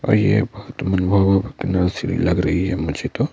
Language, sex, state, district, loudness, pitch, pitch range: Hindi, male, Madhya Pradesh, Bhopal, -19 LUFS, 95 Hz, 90-105 Hz